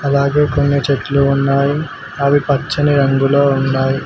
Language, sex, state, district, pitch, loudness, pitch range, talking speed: Telugu, male, Telangana, Mahabubabad, 140 Hz, -14 LUFS, 140-145 Hz, 120 wpm